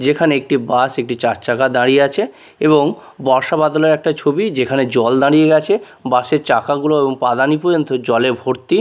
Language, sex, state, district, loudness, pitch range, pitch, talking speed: Bengali, male, Odisha, Nuapada, -15 LUFS, 130-155 Hz, 140 Hz, 165 wpm